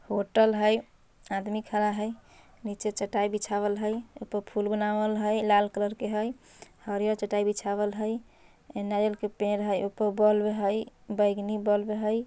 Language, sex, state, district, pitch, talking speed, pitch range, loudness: Bajjika, female, Bihar, Vaishali, 210 Hz, 150 wpm, 205-215 Hz, -28 LUFS